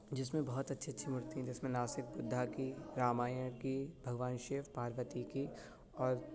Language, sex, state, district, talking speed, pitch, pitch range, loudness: Hindi, male, Uttar Pradesh, Budaun, 170 wpm, 130 Hz, 125-135 Hz, -41 LUFS